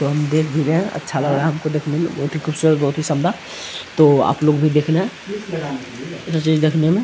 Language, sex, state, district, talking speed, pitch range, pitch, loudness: Hindi, male, Bihar, Araria, 245 wpm, 145-160 Hz, 155 Hz, -18 LUFS